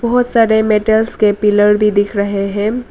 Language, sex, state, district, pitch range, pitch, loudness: Hindi, female, Arunachal Pradesh, Lower Dibang Valley, 205-225 Hz, 210 Hz, -13 LUFS